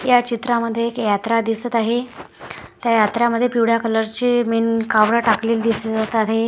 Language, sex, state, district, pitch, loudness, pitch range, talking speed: Marathi, male, Maharashtra, Washim, 230 Hz, -18 LUFS, 225-235 Hz, 140 wpm